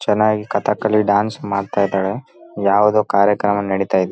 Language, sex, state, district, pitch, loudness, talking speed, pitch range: Kannada, male, Karnataka, Raichur, 105 Hz, -17 LUFS, 260 wpm, 100-105 Hz